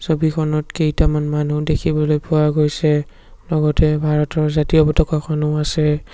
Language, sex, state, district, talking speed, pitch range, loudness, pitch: Assamese, male, Assam, Sonitpur, 110 wpm, 150-155 Hz, -18 LUFS, 150 Hz